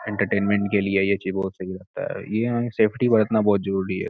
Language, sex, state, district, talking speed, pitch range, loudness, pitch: Hindi, male, Uttar Pradesh, Gorakhpur, 220 wpm, 95-110 Hz, -22 LUFS, 100 Hz